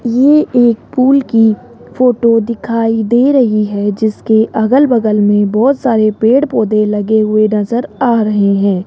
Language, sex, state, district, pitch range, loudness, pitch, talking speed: Hindi, female, Rajasthan, Jaipur, 215-245 Hz, -11 LUFS, 225 Hz, 155 wpm